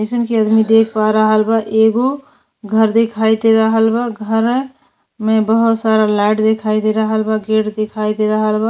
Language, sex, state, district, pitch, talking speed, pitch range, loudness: Bhojpuri, female, Uttar Pradesh, Deoria, 220 Hz, 185 wpm, 215-225 Hz, -14 LUFS